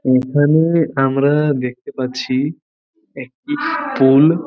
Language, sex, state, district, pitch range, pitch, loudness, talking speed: Bengali, male, West Bengal, Purulia, 130-165 Hz, 145 Hz, -16 LUFS, 95 wpm